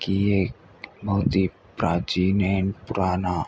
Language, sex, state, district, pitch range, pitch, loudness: Hindi, male, Uttar Pradesh, Hamirpur, 90-100 Hz, 95 Hz, -24 LUFS